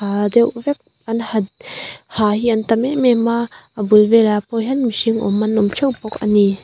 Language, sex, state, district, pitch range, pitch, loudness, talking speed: Mizo, female, Mizoram, Aizawl, 210-235 Hz, 225 Hz, -17 LUFS, 235 wpm